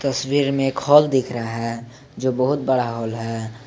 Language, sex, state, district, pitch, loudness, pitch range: Hindi, male, Jharkhand, Garhwa, 130 Hz, -20 LUFS, 115-135 Hz